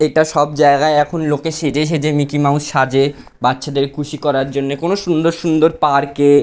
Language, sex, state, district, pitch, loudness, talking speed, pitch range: Bengali, male, West Bengal, North 24 Parganas, 145 Hz, -15 LUFS, 175 wpm, 140-155 Hz